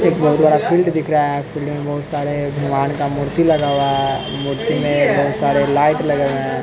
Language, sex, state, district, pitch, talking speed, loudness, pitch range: Hindi, male, Bihar, West Champaran, 145 Hz, 225 wpm, -17 LUFS, 140-150 Hz